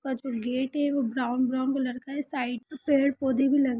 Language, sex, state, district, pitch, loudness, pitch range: Hindi, female, Bihar, Sitamarhi, 265 Hz, -27 LUFS, 255-280 Hz